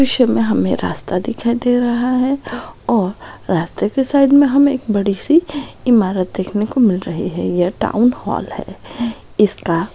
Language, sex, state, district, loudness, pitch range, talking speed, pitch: Hindi, female, Rajasthan, Nagaur, -16 LUFS, 195-260 Hz, 175 wpm, 235 Hz